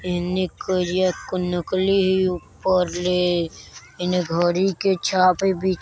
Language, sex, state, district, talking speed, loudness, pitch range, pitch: Bajjika, male, Bihar, Vaishali, 135 wpm, -21 LUFS, 175-185 Hz, 180 Hz